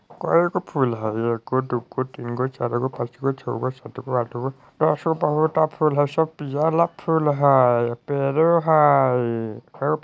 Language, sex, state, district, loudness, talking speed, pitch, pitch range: Bajjika, female, Bihar, Vaishali, -22 LUFS, 115 wpm, 135 Hz, 120-155 Hz